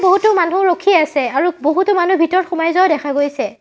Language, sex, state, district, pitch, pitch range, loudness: Assamese, female, Assam, Sonitpur, 350 Hz, 295-370 Hz, -15 LUFS